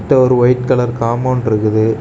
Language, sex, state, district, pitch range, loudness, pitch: Tamil, male, Tamil Nadu, Kanyakumari, 110-130 Hz, -14 LUFS, 125 Hz